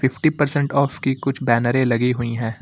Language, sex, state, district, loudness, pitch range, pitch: Hindi, male, Uttar Pradesh, Lucknow, -20 LUFS, 120-140 Hz, 130 Hz